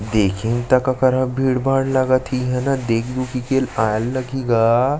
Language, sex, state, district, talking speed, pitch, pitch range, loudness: Chhattisgarhi, male, Chhattisgarh, Sarguja, 170 wpm, 130 Hz, 115-130 Hz, -19 LUFS